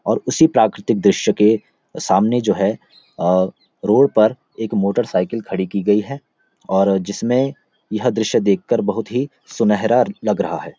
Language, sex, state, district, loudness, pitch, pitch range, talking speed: Hindi, male, Uttarakhand, Uttarkashi, -18 LUFS, 110 Hz, 100-125 Hz, 160 wpm